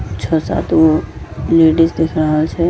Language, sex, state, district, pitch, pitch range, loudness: Angika, female, Bihar, Bhagalpur, 160 Hz, 155-165 Hz, -14 LUFS